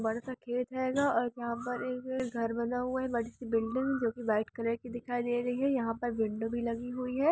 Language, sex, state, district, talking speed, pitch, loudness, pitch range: Hindi, female, Andhra Pradesh, Chittoor, 255 wpm, 240 Hz, -33 LUFS, 235-255 Hz